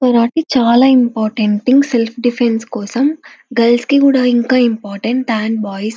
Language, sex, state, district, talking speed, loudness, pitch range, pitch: Telugu, female, Andhra Pradesh, Anantapur, 140 wpm, -14 LUFS, 225-255 Hz, 240 Hz